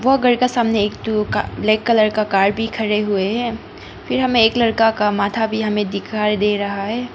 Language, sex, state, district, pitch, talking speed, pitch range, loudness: Hindi, female, Arunachal Pradesh, Papum Pare, 215 Hz, 225 wpm, 210-230 Hz, -18 LUFS